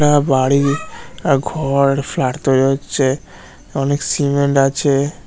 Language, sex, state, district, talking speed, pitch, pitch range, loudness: Bengali, male, West Bengal, North 24 Parganas, 125 wpm, 140 Hz, 135-145 Hz, -16 LUFS